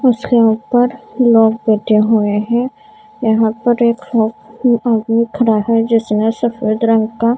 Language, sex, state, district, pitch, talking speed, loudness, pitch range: Hindi, female, Maharashtra, Mumbai Suburban, 230 Hz, 145 wpm, -14 LUFS, 220-240 Hz